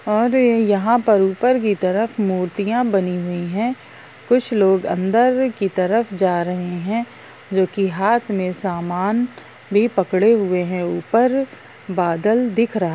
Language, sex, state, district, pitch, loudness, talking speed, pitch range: Hindi, female, Bihar, Darbhanga, 200 Hz, -19 LUFS, 140 wpm, 185-230 Hz